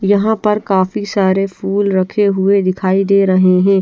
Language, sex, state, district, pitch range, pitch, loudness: Hindi, female, Chandigarh, Chandigarh, 190-205 Hz, 195 Hz, -14 LUFS